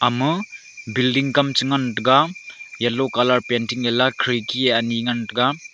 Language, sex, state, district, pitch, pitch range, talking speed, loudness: Wancho, male, Arunachal Pradesh, Longding, 130 Hz, 120-140 Hz, 135 wpm, -20 LUFS